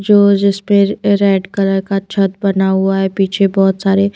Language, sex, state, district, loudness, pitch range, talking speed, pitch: Hindi, female, Himachal Pradesh, Shimla, -13 LUFS, 195-200 Hz, 185 wpm, 195 Hz